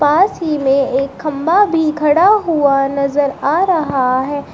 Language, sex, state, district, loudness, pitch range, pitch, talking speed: Hindi, female, Uttar Pradesh, Shamli, -14 LUFS, 275-330 Hz, 290 Hz, 160 wpm